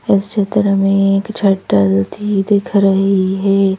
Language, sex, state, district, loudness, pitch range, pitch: Hindi, female, Madhya Pradesh, Bhopal, -14 LUFS, 195-200 Hz, 195 Hz